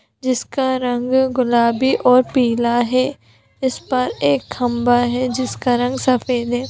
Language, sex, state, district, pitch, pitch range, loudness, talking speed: Hindi, female, Bihar, Gopalganj, 250 Hz, 240-255 Hz, -18 LUFS, 135 wpm